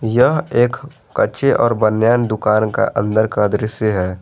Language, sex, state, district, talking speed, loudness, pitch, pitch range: Hindi, male, Jharkhand, Garhwa, 155 wpm, -16 LUFS, 110 Hz, 105-120 Hz